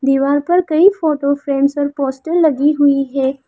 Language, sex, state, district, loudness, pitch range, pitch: Hindi, female, Arunachal Pradesh, Lower Dibang Valley, -15 LUFS, 275-315 Hz, 285 Hz